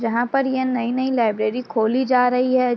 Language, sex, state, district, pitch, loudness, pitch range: Hindi, female, Uttar Pradesh, Jyotiba Phule Nagar, 250 Hz, -20 LUFS, 230-260 Hz